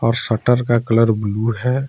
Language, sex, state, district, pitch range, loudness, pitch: Hindi, male, Jharkhand, Ranchi, 110-125 Hz, -17 LUFS, 115 Hz